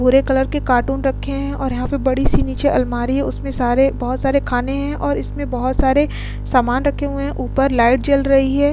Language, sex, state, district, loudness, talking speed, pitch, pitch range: Hindi, female, Uttar Pradesh, Muzaffarnagar, -18 LUFS, 225 wpm, 265 Hz, 245-275 Hz